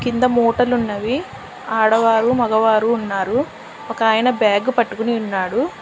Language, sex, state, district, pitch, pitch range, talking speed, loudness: Telugu, female, Telangana, Hyderabad, 230 Hz, 220-245 Hz, 95 wpm, -17 LUFS